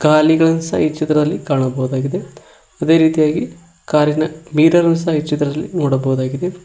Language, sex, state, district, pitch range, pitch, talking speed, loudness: Kannada, male, Karnataka, Koppal, 140-160 Hz, 155 Hz, 115 wpm, -16 LUFS